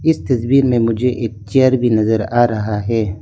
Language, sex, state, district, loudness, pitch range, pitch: Hindi, male, Arunachal Pradesh, Lower Dibang Valley, -16 LUFS, 110-130 Hz, 115 Hz